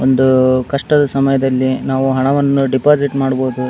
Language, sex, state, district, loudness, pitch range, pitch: Kannada, male, Karnataka, Dharwad, -14 LUFS, 130-140 Hz, 135 Hz